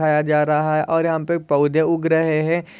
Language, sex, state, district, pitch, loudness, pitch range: Hindi, male, Maharashtra, Solapur, 160 Hz, -19 LUFS, 150-165 Hz